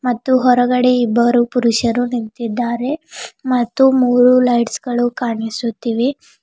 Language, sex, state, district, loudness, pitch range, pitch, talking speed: Kannada, female, Karnataka, Bidar, -16 LUFS, 235-255 Hz, 245 Hz, 85 wpm